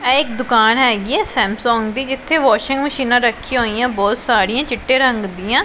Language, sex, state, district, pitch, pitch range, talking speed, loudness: Punjabi, female, Punjab, Pathankot, 245 Hz, 225-265 Hz, 180 wpm, -15 LUFS